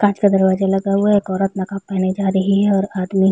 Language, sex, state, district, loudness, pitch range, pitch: Hindi, female, Chhattisgarh, Balrampur, -17 LUFS, 190-200 Hz, 195 Hz